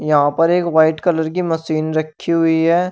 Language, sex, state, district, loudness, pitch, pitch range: Hindi, male, Uttar Pradesh, Shamli, -16 LUFS, 160 Hz, 155-170 Hz